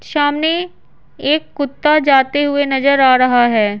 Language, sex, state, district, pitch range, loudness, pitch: Hindi, female, Bihar, Patna, 265-300 Hz, -14 LUFS, 285 Hz